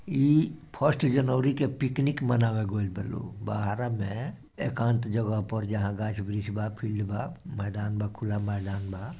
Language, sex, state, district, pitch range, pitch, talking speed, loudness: Bhojpuri, male, Bihar, Gopalganj, 105-135 Hz, 110 Hz, 165 wpm, -29 LUFS